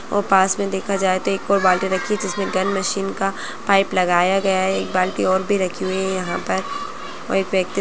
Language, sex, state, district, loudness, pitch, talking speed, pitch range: Hindi, female, Chhattisgarh, Bastar, -20 LUFS, 195 Hz, 205 wpm, 185-200 Hz